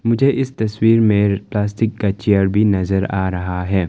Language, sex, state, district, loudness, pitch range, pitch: Hindi, male, Arunachal Pradesh, Longding, -17 LUFS, 95-110 Hz, 100 Hz